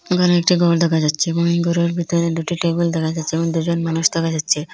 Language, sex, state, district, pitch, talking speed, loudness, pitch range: Bengali, female, Assam, Hailakandi, 170 Hz, 215 wpm, -18 LUFS, 165-170 Hz